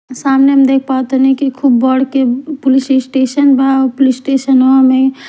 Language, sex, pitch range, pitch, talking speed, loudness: Bhojpuri, female, 260-270 Hz, 265 Hz, 195 wpm, -11 LUFS